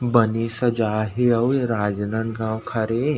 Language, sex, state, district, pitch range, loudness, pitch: Chhattisgarhi, male, Chhattisgarh, Rajnandgaon, 110-120 Hz, -22 LUFS, 115 Hz